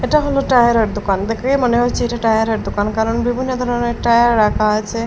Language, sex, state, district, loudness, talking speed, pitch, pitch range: Bengali, female, Assam, Hailakandi, -16 LUFS, 215 wpm, 235 Hz, 220-245 Hz